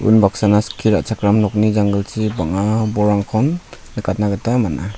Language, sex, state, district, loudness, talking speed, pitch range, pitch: Garo, male, Meghalaya, South Garo Hills, -17 LUFS, 120 wpm, 100-110 Hz, 105 Hz